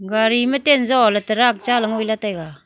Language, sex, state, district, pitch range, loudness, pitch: Wancho, female, Arunachal Pradesh, Longding, 215-245 Hz, -17 LUFS, 220 Hz